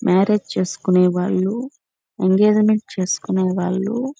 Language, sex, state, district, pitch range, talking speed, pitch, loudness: Telugu, female, Andhra Pradesh, Chittoor, 185-215 Hz, 70 wpm, 190 Hz, -19 LUFS